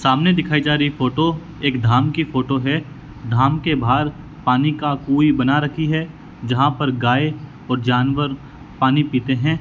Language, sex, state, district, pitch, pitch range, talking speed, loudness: Hindi, male, Rajasthan, Bikaner, 145 Hz, 130-150 Hz, 175 wpm, -19 LUFS